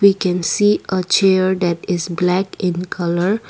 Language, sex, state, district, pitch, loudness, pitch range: English, female, Assam, Kamrup Metropolitan, 185 Hz, -17 LUFS, 180-195 Hz